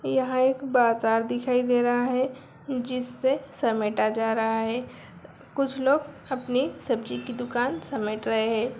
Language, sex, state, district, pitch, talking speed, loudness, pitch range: Hindi, female, Bihar, Begusarai, 245 Hz, 145 wpm, -26 LUFS, 225-260 Hz